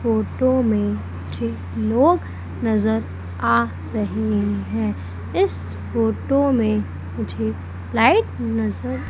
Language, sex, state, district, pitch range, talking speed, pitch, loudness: Hindi, female, Madhya Pradesh, Umaria, 90-110 Hz, 90 wpm, 100 Hz, -21 LUFS